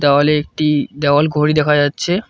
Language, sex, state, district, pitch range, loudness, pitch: Bengali, male, West Bengal, Cooch Behar, 145-155 Hz, -15 LUFS, 150 Hz